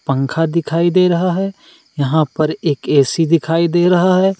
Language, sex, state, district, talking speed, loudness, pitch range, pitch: Hindi, male, Jharkhand, Deoghar, 175 wpm, -15 LUFS, 155-180 Hz, 165 Hz